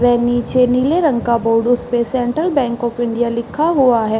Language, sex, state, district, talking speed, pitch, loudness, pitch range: Hindi, female, Bihar, East Champaran, 200 wpm, 240 Hz, -16 LUFS, 235-255 Hz